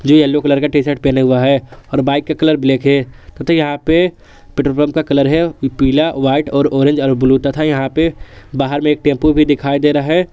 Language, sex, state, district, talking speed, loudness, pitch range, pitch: Hindi, male, Jharkhand, Garhwa, 225 wpm, -14 LUFS, 135-150 Hz, 145 Hz